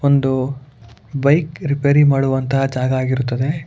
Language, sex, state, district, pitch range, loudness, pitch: Kannada, male, Karnataka, Bangalore, 130-140 Hz, -17 LUFS, 135 Hz